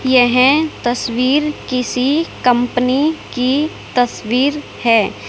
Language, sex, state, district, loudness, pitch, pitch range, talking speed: Hindi, female, Haryana, Charkhi Dadri, -16 LUFS, 255 Hz, 245-290 Hz, 80 wpm